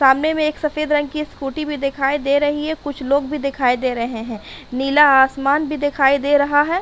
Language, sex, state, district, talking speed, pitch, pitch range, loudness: Hindi, female, Uttar Pradesh, Hamirpur, 220 wpm, 285 Hz, 270-300 Hz, -18 LUFS